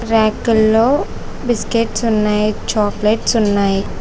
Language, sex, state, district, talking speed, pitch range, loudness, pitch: Telugu, female, Telangana, Hyderabad, 75 wpm, 210-230 Hz, -16 LUFS, 215 Hz